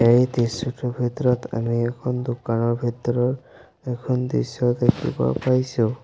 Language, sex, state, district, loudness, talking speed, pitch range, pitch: Assamese, male, Assam, Sonitpur, -23 LUFS, 110 wpm, 120-125 Hz, 120 Hz